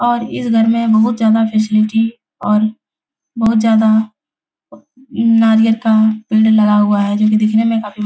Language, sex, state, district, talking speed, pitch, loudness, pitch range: Hindi, female, Bihar, Jahanabad, 165 wpm, 220 Hz, -13 LUFS, 215-225 Hz